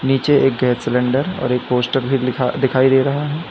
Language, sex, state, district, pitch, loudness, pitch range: Hindi, male, Uttar Pradesh, Lalitpur, 130 Hz, -17 LUFS, 125-135 Hz